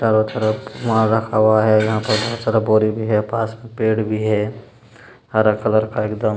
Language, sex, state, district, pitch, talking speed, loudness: Hindi, male, Uttar Pradesh, Jalaun, 110 Hz, 215 wpm, -18 LUFS